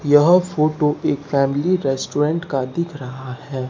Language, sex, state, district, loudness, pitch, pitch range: Hindi, male, Bihar, Katihar, -19 LUFS, 145 Hz, 135-155 Hz